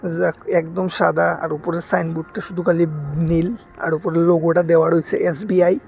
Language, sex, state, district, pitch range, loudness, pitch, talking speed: Bengali, male, Tripura, West Tripura, 165-180 Hz, -19 LUFS, 170 Hz, 165 wpm